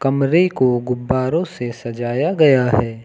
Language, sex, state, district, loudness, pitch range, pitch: Hindi, male, Uttar Pradesh, Lucknow, -17 LUFS, 120-140 Hz, 130 Hz